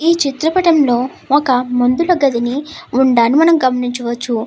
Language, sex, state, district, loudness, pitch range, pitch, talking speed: Telugu, female, Andhra Pradesh, Krishna, -14 LUFS, 245-320 Hz, 265 Hz, 120 wpm